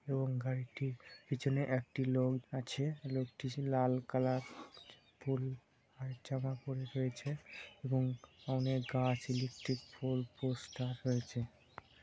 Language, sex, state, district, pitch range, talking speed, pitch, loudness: Bengali, male, West Bengal, Purulia, 125-135 Hz, 105 wpm, 130 Hz, -39 LUFS